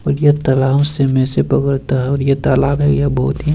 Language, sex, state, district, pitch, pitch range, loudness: Hindi, male, Bihar, Bhagalpur, 140 Hz, 135-145 Hz, -15 LUFS